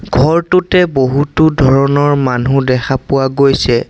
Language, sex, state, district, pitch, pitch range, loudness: Assamese, male, Assam, Sonitpur, 135 Hz, 130-155 Hz, -12 LUFS